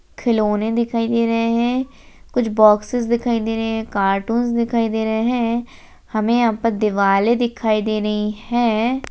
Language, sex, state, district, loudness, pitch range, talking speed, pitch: Hindi, female, Rajasthan, Nagaur, -19 LUFS, 215-235 Hz, 160 wpm, 230 Hz